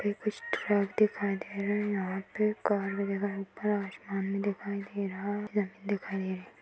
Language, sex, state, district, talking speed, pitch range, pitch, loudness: Hindi, female, Uttar Pradesh, Etah, 200 wpm, 195-205 Hz, 200 Hz, -32 LUFS